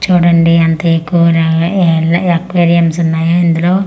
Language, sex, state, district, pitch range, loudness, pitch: Telugu, female, Andhra Pradesh, Manyam, 165-175 Hz, -11 LUFS, 170 Hz